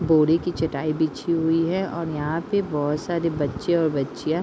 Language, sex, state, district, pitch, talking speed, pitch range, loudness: Hindi, female, Bihar, Madhepura, 160 Hz, 205 wpm, 150-170 Hz, -23 LUFS